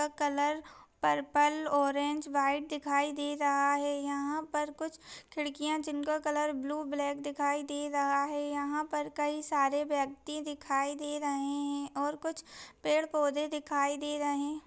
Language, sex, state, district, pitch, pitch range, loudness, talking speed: Hindi, female, Maharashtra, Aurangabad, 290 Hz, 285-300 Hz, -33 LUFS, 150 wpm